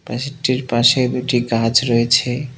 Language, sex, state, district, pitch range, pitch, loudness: Bengali, male, West Bengal, Cooch Behar, 120-130 Hz, 125 Hz, -16 LUFS